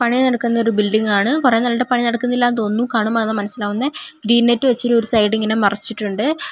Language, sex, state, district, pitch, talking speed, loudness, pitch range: Malayalam, female, Kerala, Wayanad, 235 Hz, 175 wpm, -17 LUFS, 215-245 Hz